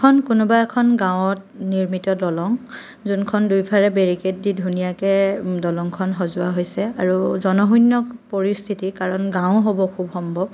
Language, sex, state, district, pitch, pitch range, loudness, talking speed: Assamese, female, Assam, Kamrup Metropolitan, 195 Hz, 185-210 Hz, -19 LUFS, 130 wpm